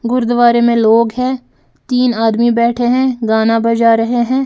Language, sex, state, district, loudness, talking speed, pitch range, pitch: Hindi, female, Bihar, Patna, -13 LUFS, 160 wpm, 230-250 Hz, 235 Hz